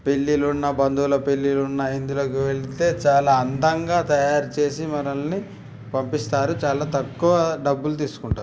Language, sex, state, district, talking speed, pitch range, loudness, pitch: Telugu, male, Telangana, Karimnagar, 100 wpm, 135-150 Hz, -22 LUFS, 140 Hz